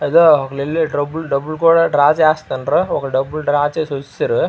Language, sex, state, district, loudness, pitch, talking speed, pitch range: Telugu, male, Andhra Pradesh, Srikakulam, -16 LUFS, 155 Hz, 135 wpm, 140-165 Hz